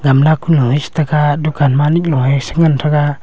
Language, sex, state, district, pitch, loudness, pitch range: Wancho, male, Arunachal Pradesh, Longding, 150 Hz, -13 LUFS, 140-155 Hz